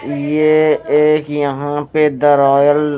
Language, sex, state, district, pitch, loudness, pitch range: Hindi, male, Haryana, Rohtak, 145 Hz, -13 LUFS, 145-150 Hz